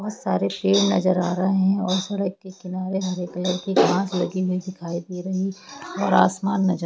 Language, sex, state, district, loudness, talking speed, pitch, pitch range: Hindi, female, Jharkhand, Jamtara, -23 LUFS, 210 wpm, 185 Hz, 180-190 Hz